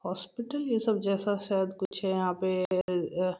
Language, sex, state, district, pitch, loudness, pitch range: Hindi, female, Bihar, Muzaffarpur, 190 Hz, -30 LUFS, 185-205 Hz